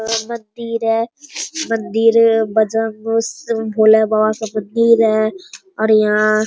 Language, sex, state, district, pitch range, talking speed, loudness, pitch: Hindi, male, Bihar, Bhagalpur, 215-230 Hz, 130 wpm, -16 LUFS, 225 Hz